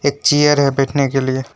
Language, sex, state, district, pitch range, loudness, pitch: Hindi, male, West Bengal, Alipurduar, 135-145 Hz, -15 LUFS, 140 Hz